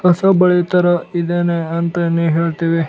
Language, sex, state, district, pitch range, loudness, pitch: Kannada, male, Karnataka, Bellary, 165-175 Hz, -15 LUFS, 170 Hz